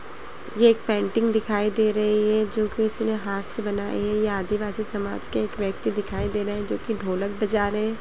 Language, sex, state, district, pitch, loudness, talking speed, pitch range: Hindi, female, Chhattisgarh, Bastar, 210 Hz, -24 LUFS, 225 wpm, 205-220 Hz